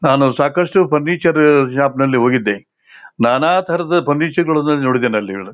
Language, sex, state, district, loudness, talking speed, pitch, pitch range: Kannada, male, Karnataka, Shimoga, -15 LUFS, 130 wpm, 145 Hz, 130-170 Hz